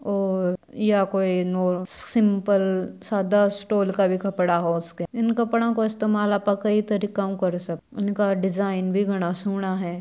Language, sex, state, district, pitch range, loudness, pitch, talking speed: Marwari, female, Rajasthan, Churu, 185-205 Hz, -23 LUFS, 200 Hz, 155 wpm